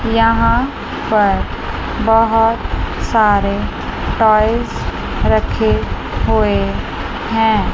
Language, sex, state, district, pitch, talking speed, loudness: Hindi, female, Chandigarh, Chandigarh, 205 Hz, 60 wpm, -16 LUFS